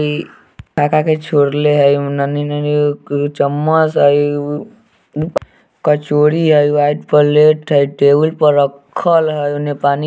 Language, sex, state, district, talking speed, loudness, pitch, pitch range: Bajjika, male, Bihar, Vaishali, 125 wpm, -14 LUFS, 150 Hz, 145-155 Hz